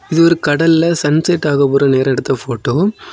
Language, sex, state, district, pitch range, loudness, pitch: Tamil, male, Tamil Nadu, Kanyakumari, 135-170 Hz, -14 LUFS, 150 Hz